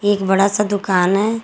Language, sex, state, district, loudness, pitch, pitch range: Hindi, female, Jharkhand, Garhwa, -16 LUFS, 205 Hz, 195-210 Hz